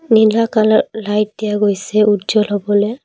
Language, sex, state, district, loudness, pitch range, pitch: Assamese, female, Assam, Kamrup Metropolitan, -15 LUFS, 205-220 Hz, 215 Hz